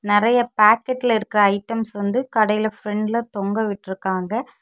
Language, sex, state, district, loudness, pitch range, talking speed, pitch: Tamil, female, Tamil Nadu, Kanyakumari, -20 LUFS, 205-230 Hz, 115 wpm, 215 Hz